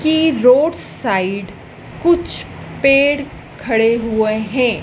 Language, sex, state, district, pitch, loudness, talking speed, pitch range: Hindi, female, Madhya Pradesh, Dhar, 250 Hz, -15 LUFS, 100 wpm, 220-290 Hz